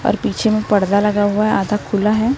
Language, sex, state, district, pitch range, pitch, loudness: Hindi, female, Maharashtra, Gondia, 205-215 Hz, 210 Hz, -16 LUFS